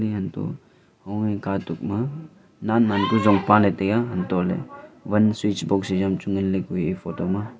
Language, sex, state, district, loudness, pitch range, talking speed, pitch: Wancho, male, Arunachal Pradesh, Longding, -23 LUFS, 95-110 Hz, 190 wpm, 100 Hz